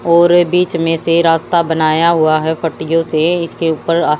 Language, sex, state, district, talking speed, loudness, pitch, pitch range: Hindi, female, Haryana, Jhajjar, 185 wpm, -13 LUFS, 165 Hz, 160-170 Hz